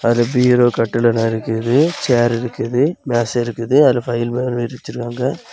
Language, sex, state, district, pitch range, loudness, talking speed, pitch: Tamil, male, Tamil Nadu, Kanyakumari, 115-125 Hz, -17 LUFS, 130 wpm, 120 Hz